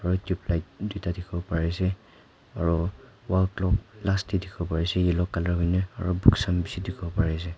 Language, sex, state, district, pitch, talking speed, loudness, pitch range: Nagamese, male, Nagaland, Kohima, 90 Hz, 220 wpm, -27 LUFS, 85-95 Hz